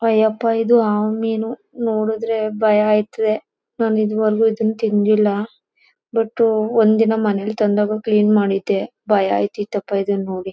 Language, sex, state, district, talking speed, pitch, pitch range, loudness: Kannada, female, Karnataka, Mysore, 120 wpm, 215 Hz, 210-225 Hz, -18 LUFS